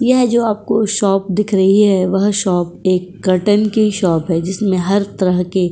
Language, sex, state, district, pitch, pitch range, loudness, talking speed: Hindi, female, Uttar Pradesh, Etah, 195 Hz, 185-210 Hz, -15 LUFS, 190 wpm